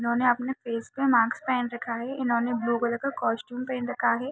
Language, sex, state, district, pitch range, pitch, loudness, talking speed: Hindi, female, Jharkhand, Sahebganj, 235-255 Hz, 240 Hz, -27 LUFS, 210 wpm